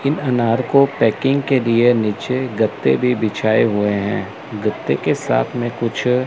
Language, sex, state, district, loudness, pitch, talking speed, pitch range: Hindi, male, Chandigarh, Chandigarh, -18 LUFS, 120 Hz, 160 wpm, 110-130 Hz